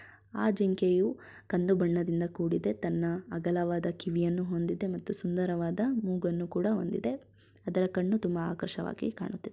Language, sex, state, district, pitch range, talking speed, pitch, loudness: Kannada, female, Karnataka, Shimoga, 175-195 Hz, 115 wpm, 180 Hz, -31 LUFS